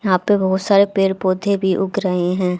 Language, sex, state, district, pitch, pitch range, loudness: Hindi, female, Haryana, Charkhi Dadri, 190 Hz, 185-200 Hz, -17 LUFS